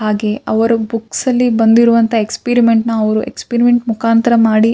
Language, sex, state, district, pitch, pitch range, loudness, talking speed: Kannada, female, Karnataka, Bijapur, 230 Hz, 220-235 Hz, -13 LUFS, 150 wpm